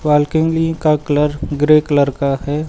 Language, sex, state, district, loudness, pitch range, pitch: Hindi, male, Uttar Pradesh, Lucknow, -15 LUFS, 145-155 Hz, 150 Hz